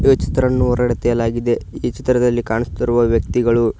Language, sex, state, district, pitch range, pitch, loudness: Kannada, male, Karnataka, Koppal, 115-125 Hz, 120 Hz, -17 LUFS